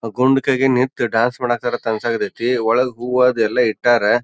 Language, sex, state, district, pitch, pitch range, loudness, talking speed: Kannada, male, Karnataka, Bijapur, 120 Hz, 120-125 Hz, -17 LUFS, 170 wpm